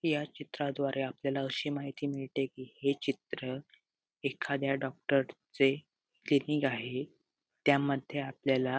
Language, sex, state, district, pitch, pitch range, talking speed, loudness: Marathi, male, Maharashtra, Sindhudurg, 140 Hz, 135-140 Hz, 115 wpm, -33 LUFS